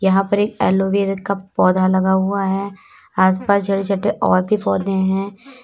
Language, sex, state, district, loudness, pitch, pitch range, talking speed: Hindi, female, Uttar Pradesh, Lalitpur, -18 LUFS, 195 Hz, 190-200 Hz, 190 wpm